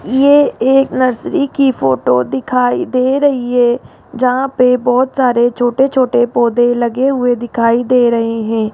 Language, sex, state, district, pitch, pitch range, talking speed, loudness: Hindi, female, Rajasthan, Jaipur, 250 Hz, 240-265 Hz, 150 wpm, -13 LUFS